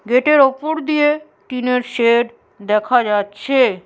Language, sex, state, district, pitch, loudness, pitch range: Bengali, female, West Bengal, Jhargram, 250 Hz, -16 LUFS, 235-280 Hz